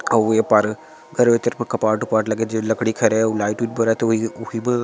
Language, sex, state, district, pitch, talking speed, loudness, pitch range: Chhattisgarhi, male, Chhattisgarh, Sarguja, 115 Hz, 260 wpm, -19 LUFS, 110-120 Hz